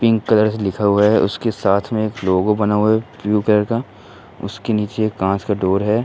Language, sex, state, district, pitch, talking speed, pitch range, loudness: Hindi, male, Uttar Pradesh, Muzaffarnagar, 105 Hz, 240 wpm, 100-110 Hz, -18 LUFS